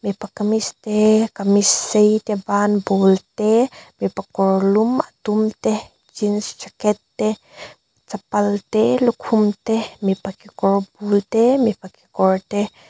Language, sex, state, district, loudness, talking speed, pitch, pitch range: Mizo, female, Mizoram, Aizawl, -19 LUFS, 125 wpm, 210 Hz, 200-220 Hz